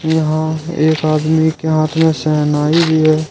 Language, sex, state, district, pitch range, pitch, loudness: Hindi, male, Jharkhand, Ranchi, 155-160 Hz, 155 Hz, -14 LUFS